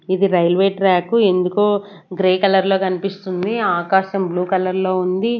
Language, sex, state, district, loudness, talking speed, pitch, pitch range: Telugu, female, Andhra Pradesh, Sri Satya Sai, -17 LUFS, 120 wpm, 190 Hz, 185-195 Hz